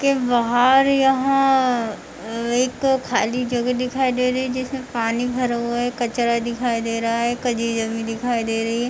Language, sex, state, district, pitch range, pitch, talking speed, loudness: Hindi, female, Jharkhand, Jamtara, 230-255 Hz, 245 Hz, 175 wpm, -20 LUFS